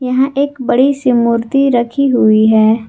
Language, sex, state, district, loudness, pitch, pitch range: Hindi, female, Jharkhand, Garhwa, -12 LUFS, 250 Hz, 230-275 Hz